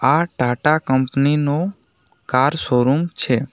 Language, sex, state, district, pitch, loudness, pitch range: Gujarati, male, Gujarat, Navsari, 140 Hz, -18 LUFS, 130-155 Hz